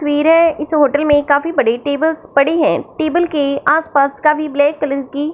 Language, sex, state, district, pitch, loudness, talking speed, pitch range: Hindi, female, Punjab, Fazilka, 295 Hz, -14 LUFS, 190 wpm, 285-315 Hz